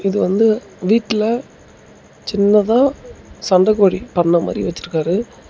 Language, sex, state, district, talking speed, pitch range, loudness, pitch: Tamil, male, Tamil Nadu, Namakkal, 85 wpm, 185-225 Hz, -16 LUFS, 205 Hz